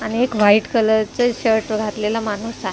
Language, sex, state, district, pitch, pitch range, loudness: Marathi, female, Maharashtra, Mumbai Suburban, 220 Hz, 210-225 Hz, -18 LUFS